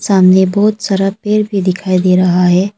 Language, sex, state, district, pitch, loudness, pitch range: Hindi, female, Arunachal Pradesh, Longding, 195 Hz, -12 LUFS, 185-205 Hz